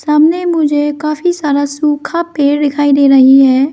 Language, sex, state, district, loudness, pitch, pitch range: Hindi, female, Arunachal Pradesh, Lower Dibang Valley, -11 LUFS, 295 Hz, 285-305 Hz